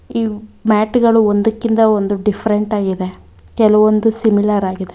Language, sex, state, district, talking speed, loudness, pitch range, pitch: Kannada, female, Karnataka, Bangalore, 120 wpm, -14 LUFS, 205-220 Hz, 215 Hz